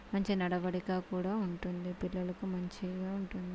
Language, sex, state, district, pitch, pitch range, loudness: Telugu, female, Telangana, Nalgonda, 185 Hz, 180-190 Hz, -37 LUFS